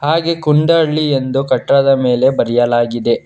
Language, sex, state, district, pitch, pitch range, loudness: Kannada, male, Karnataka, Bangalore, 135 Hz, 120-150 Hz, -13 LUFS